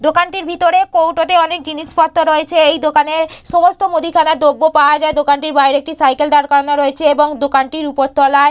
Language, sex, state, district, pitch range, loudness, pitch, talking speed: Bengali, female, West Bengal, Purulia, 290-330 Hz, -13 LUFS, 310 Hz, 170 wpm